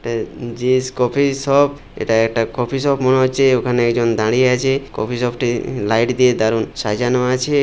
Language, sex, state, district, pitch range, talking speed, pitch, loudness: Bengali, male, West Bengal, Purulia, 115-135 Hz, 180 wpm, 125 Hz, -17 LUFS